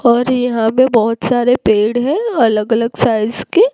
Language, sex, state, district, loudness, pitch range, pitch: Hindi, female, Gujarat, Gandhinagar, -14 LUFS, 225-250 Hz, 235 Hz